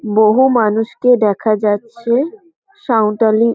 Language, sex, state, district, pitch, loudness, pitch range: Bengali, female, West Bengal, Kolkata, 230 Hz, -14 LUFS, 215-250 Hz